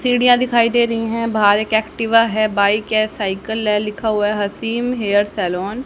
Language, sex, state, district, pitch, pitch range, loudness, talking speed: Hindi, female, Haryana, Rohtak, 220 Hz, 205-230 Hz, -17 LUFS, 205 wpm